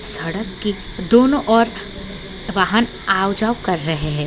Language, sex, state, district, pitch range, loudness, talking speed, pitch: Hindi, female, Bihar, Gopalganj, 185-220 Hz, -18 LUFS, 125 wpm, 200 Hz